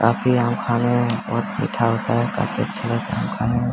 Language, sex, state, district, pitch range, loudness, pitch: Hindi, male, Bihar, Samastipur, 115-120 Hz, -21 LUFS, 120 Hz